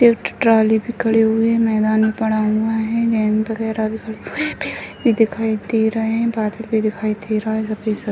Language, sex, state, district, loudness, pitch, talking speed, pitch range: Hindi, female, Bihar, Sitamarhi, -18 LUFS, 220 Hz, 220 wpm, 215-225 Hz